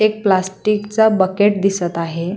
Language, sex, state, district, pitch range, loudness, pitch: Marathi, female, Maharashtra, Solapur, 185-210 Hz, -16 LUFS, 195 Hz